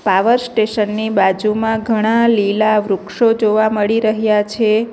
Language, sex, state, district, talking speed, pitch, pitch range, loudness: Gujarati, female, Gujarat, Navsari, 135 wpm, 215 Hz, 210-225 Hz, -15 LUFS